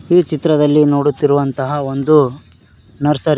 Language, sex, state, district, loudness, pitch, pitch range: Kannada, male, Karnataka, Koppal, -14 LUFS, 145 Hz, 135-150 Hz